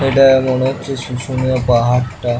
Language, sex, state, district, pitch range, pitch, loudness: Bengali, male, West Bengal, Purulia, 125-135 Hz, 130 Hz, -15 LUFS